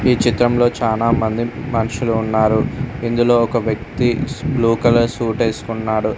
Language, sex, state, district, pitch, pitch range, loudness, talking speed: Telugu, male, Telangana, Mahabubabad, 115 Hz, 110-120 Hz, -17 LUFS, 125 wpm